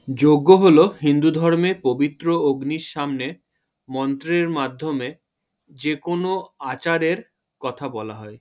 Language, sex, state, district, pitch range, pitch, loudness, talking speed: Bengali, male, West Bengal, Paschim Medinipur, 135-165 Hz, 150 Hz, -20 LUFS, 115 wpm